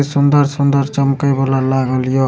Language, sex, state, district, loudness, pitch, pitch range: Maithili, male, Bihar, Supaul, -14 LUFS, 140 Hz, 135-140 Hz